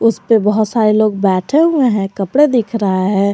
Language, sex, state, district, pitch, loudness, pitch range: Hindi, female, Jharkhand, Garhwa, 215 Hz, -14 LUFS, 200-235 Hz